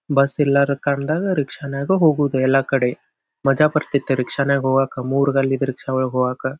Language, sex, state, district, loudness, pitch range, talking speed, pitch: Kannada, male, Karnataka, Dharwad, -19 LUFS, 130-145 Hz, 145 wpm, 140 Hz